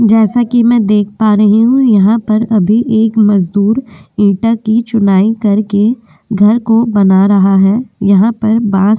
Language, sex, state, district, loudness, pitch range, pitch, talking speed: Hindi, female, Uttar Pradesh, Jyotiba Phule Nagar, -10 LUFS, 205-230 Hz, 215 Hz, 165 wpm